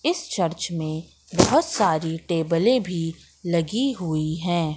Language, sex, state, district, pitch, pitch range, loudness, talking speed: Hindi, female, Madhya Pradesh, Katni, 170 Hz, 160-220 Hz, -23 LUFS, 125 wpm